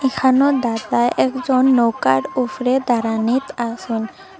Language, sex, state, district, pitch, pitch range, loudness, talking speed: Bengali, female, Assam, Hailakandi, 250 Hz, 230-265 Hz, -18 LUFS, 110 wpm